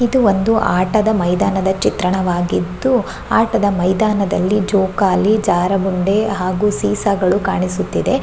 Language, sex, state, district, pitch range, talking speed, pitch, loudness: Kannada, female, Karnataka, Shimoga, 185-210 Hz, 85 wpm, 195 Hz, -16 LUFS